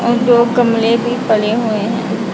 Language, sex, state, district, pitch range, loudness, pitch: Hindi, female, Punjab, Pathankot, 220-240 Hz, -14 LUFS, 230 Hz